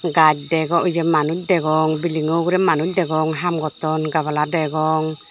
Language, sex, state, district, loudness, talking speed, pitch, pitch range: Chakma, female, Tripura, Dhalai, -19 LUFS, 160 wpm, 155 Hz, 155-170 Hz